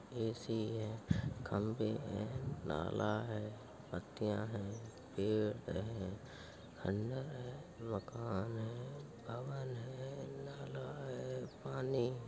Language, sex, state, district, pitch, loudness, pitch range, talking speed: Hindi, male, Uttar Pradesh, Jalaun, 115 Hz, -42 LUFS, 105-125 Hz, 105 wpm